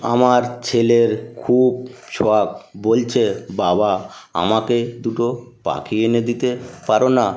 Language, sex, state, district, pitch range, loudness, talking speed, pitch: Bengali, male, West Bengal, North 24 Parganas, 110-125 Hz, -18 LUFS, 105 wpm, 120 Hz